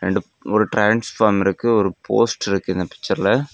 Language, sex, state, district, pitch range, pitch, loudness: Tamil, male, Tamil Nadu, Kanyakumari, 100-115 Hz, 105 Hz, -19 LUFS